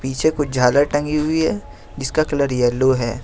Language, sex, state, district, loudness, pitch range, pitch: Hindi, male, Jharkhand, Ranchi, -18 LUFS, 125-150 Hz, 135 Hz